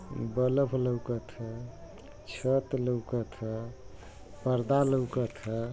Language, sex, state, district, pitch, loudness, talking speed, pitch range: Bhojpuri, male, Uttar Pradesh, Ghazipur, 120 Hz, -31 LUFS, 95 wpm, 115-130 Hz